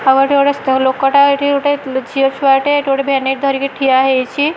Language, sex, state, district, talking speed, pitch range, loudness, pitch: Odia, female, Odisha, Malkangiri, 210 wpm, 265-280 Hz, -13 LUFS, 275 Hz